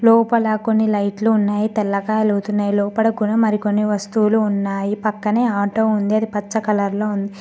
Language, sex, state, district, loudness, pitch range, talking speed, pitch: Telugu, female, Telangana, Mahabubabad, -18 LUFS, 205-220 Hz, 145 wpm, 210 Hz